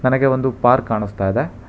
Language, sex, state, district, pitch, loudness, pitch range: Kannada, male, Karnataka, Bangalore, 125 Hz, -18 LUFS, 110-130 Hz